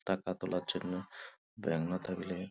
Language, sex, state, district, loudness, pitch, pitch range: Bengali, male, West Bengal, Purulia, -37 LUFS, 90 Hz, 90-95 Hz